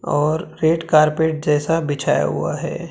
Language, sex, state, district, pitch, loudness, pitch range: Hindi, male, Maharashtra, Gondia, 155 Hz, -19 LUFS, 145-160 Hz